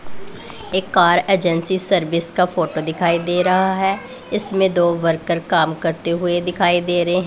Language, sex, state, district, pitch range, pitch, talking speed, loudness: Hindi, female, Punjab, Pathankot, 170-190 Hz, 175 Hz, 165 wpm, -17 LUFS